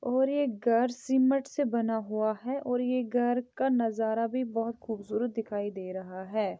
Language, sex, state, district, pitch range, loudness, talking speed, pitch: Hindi, female, Chhattisgarh, Bilaspur, 220-255 Hz, -30 LUFS, 180 wpm, 235 Hz